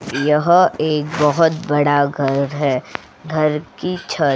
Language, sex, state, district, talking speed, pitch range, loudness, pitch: Hindi, female, Goa, North and South Goa, 135 wpm, 145-160 Hz, -17 LUFS, 150 Hz